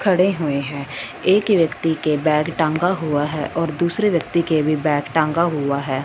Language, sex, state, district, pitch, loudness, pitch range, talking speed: Hindi, female, Punjab, Fazilka, 155 Hz, -19 LUFS, 145-170 Hz, 190 wpm